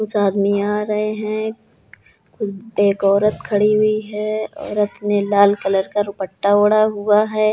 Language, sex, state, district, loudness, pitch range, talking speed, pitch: Hindi, female, Uttar Pradesh, Hamirpur, -18 LUFS, 200-215 Hz, 150 wpm, 210 Hz